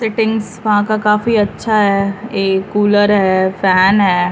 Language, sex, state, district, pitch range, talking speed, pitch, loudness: Hindi, female, Bihar, Patna, 195-215 Hz, 150 wpm, 205 Hz, -14 LUFS